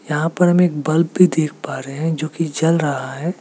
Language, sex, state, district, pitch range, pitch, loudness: Hindi, male, Meghalaya, West Garo Hills, 150-170 Hz, 160 Hz, -18 LUFS